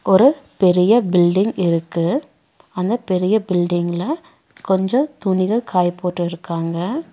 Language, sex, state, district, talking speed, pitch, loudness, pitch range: Tamil, female, Tamil Nadu, Nilgiris, 95 wpm, 185 Hz, -18 LUFS, 175-230 Hz